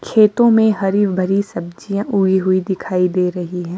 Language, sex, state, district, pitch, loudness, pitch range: Hindi, female, Himachal Pradesh, Shimla, 190 Hz, -16 LUFS, 180-205 Hz